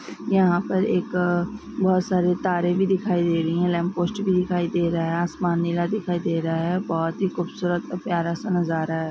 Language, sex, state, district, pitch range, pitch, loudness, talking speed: Hindi, female, Chhattisgarh, Korba, 170-185 Hz, 175 Hz, -23 LUFS, 210 wpm